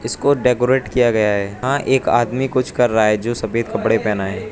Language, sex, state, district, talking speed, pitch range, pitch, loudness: Hindi, male, Arunachal Pradesh, Lower Dibang Valley, 225 wpm, 110-130 Hz, 120 Hz, -17 LUFS